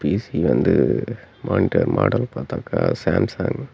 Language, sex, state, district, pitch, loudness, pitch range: Tamil, male, Tamil Nadu, Namakkal, 95 Hz, -20 LUFS, 85-120 Hz